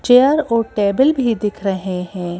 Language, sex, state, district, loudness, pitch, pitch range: Hindi, female, Madhya Pradesh, Bhopal, -17 LUFS, 210 Hz, 190-250 Hz